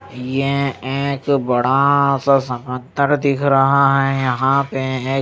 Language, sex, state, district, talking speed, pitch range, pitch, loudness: Hindi, male, Odisha, Nuapada, 125 wpm, 130-140 Hz, 135 Hz, -17 LUFS